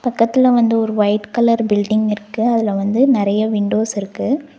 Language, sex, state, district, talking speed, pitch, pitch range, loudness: Tamil, female, Tamil Nadu, Nilgiris, 155 wpm, 220 Hz, 210-235 Hz, -16 LUFS